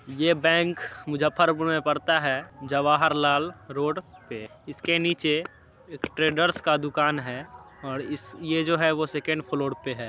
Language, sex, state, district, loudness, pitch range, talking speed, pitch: Hindi, male, Bihar, Muzaffarpur, -25 LUFS, 140-160 Hz, 150 wpm, 150 Hz